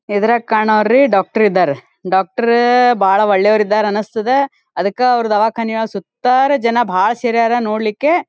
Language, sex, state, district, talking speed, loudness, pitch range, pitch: Kannada, female, Karnataka, Dharwad, 125 wpm, -14 LUFS, 205-240 Hz, 220 Hz